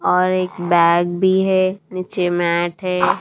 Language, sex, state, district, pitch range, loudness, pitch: Hindi, female, Haryana, Rohtak, 175-185 Hz, -17 LUFS, 180 Hz